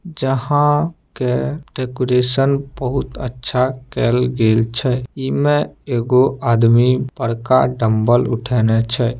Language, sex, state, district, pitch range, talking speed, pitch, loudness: Maithili, male, Bihar, Samastipur, 120-135 Hz, 105 wpm, 125 Hz, -17 LUFS